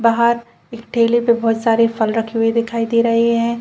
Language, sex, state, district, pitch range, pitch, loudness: Hindi, female, Chhattisgarh, Bilaspur, 230-235 Hz, 230 Hz, -16 LUFS